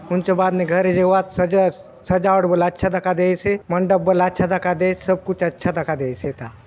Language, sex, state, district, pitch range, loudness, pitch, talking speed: Halbi, male, Chhattisgarh, Bastar, 175-185 Hz, -19 LUFS, 185 Hz, 205 wpm